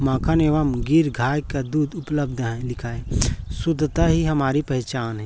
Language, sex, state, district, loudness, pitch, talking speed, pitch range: Hindi, male, Chhattisgarh, Raipur, -22 LUFS, 140 Hz, 170 wpm, 125-155 Hz